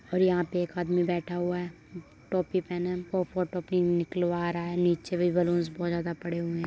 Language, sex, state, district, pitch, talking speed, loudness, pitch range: Hindi, female, Uttar Pradesh, Muzaffarnagar, 175 Hz, 215 wpm, -29 LUFS, 170-180 Hz